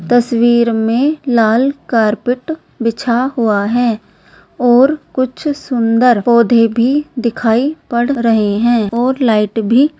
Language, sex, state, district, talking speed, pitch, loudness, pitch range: Hindi, female, Bihar, Begusarai, 120 wpm, 235 Hz, -13 LUFS, 225-260 Hz